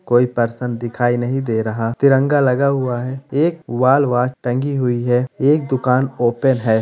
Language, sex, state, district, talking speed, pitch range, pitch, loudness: Hindi, male, Bihar, Gopalganj, 175 wpm, 120-135 Hz, 125 Hz, -17 LUFS